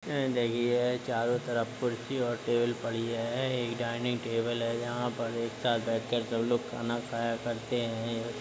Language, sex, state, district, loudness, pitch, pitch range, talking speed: Hindi, male, Uttar Pradesh, Budaun, -32 LUFS, 120 Hz, 115-120 Hz, 185 wpm